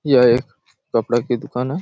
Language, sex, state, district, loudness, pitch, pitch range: Hindi, male, Chhattisgarh, Raigarh, -19 LUFS, 125 Hz, 120-130 Hz